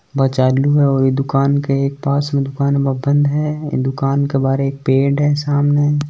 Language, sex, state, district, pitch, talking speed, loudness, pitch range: Marwari, male, Rajasthan, Nagaur, 140 Hz, 215 wpm, -16 LUFS, 135-145 Hz